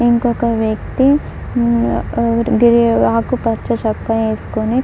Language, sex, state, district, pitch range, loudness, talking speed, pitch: Telugu, female, Andhra Pradesh, Krishna, 220-240 Hz, -15 LUFS, 75 wpm, 235 Hz